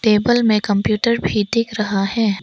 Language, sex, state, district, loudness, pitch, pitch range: Hindi, female, Arunachal Pradesh, Papum Pare, -17 LUFS, 215 Hz, 205-230 Hz